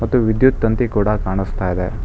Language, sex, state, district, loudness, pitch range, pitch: Kannada, male, Karnataka, Bangalore, -18 LUFS, 95-115 Hz, 110 Hz